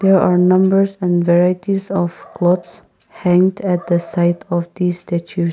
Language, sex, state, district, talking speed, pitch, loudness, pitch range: English, male, Nagaland, Kohima, 150 wpm, 180 Hz, -16 LUFS, 175-190 Hz